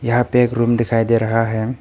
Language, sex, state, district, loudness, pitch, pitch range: Hindi, male, Arunachal Pradesh, Papum Pare, -17 LUFS, 115 Hz, 115-120 Hz